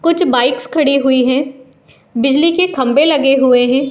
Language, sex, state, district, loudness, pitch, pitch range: Hindi, female, Uttar Pradesh, Muzaffarnagar, -12 LUFS, 270 Hz, 255-300 Hz